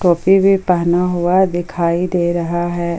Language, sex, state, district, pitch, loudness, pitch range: Hindi, female, Jharkhand, Ranchi, 175 Hz, -15 LUFS, 170-180 Hz